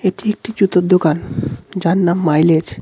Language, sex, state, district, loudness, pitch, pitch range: Bengali, male, West Bengal, Cooch Behar, -16 LUFS, 175 Hz, 160-190 Hz